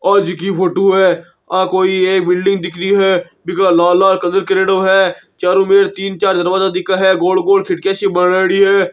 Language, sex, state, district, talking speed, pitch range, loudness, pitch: Marwari, male, Rajasthan, Nagaur, 215 wpm, 180-195 Hz, -13 LUFS, 190 Hz